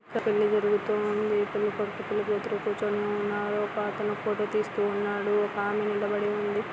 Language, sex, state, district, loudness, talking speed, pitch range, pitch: Telugu, female, Andhra Pradesh, Anantapur, -28 LUFS, 180 wpm, 205-210 Hz, 210 Hz